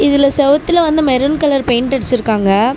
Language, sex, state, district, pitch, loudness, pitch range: Tamil, female, Tamil Nadu, Namakkal, 275 Hz, -13 LUFS, 245-290 Hz